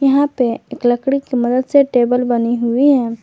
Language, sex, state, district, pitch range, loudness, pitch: Hindi, female, Jharkhand, Garhwa, 240-275 Hz, -15 LUFS, 250 Hz